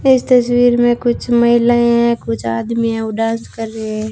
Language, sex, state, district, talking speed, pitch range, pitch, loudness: Hindi, female, Rajasthan, Jaisalmer, 190 wpm, 225-240 Hz, 235 Hz, -14 LUFS